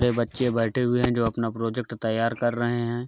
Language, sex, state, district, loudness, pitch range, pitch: Hindi, male, Bihar, Gopalganj, -25 LUFS, 115-120 Hz, 120 Hz